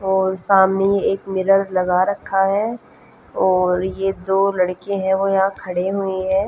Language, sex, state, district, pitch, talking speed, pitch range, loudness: Hindi, female, Haryana, Jhajjar, 195 Hz, 155 wpm, 190-195 Hz, -18 LUFS